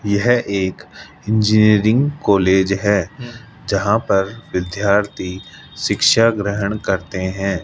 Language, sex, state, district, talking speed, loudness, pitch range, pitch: Hindi, male, Rajasthan, Jaipur, 95 wpm, -17 LUFS, 95-110 Hz, 100 Hz